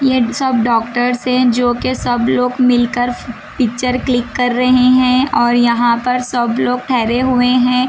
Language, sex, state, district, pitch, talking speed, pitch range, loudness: Hindi, female, Bihar, Patna, 250 Hz, 165 wpm, 240-250 Hz, -14 LUFS